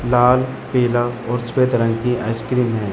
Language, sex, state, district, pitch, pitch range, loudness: Hindi, male, Chandigarh, Chandigarh, 120 Hz, 115-125 Hz, -18 LUFS